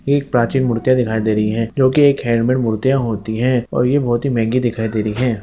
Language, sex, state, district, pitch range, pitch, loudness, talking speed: Hindi, male, Bihar, Gopalganj, 110-130 Hz, 120 Hz, -17 LUFS, 265 wpm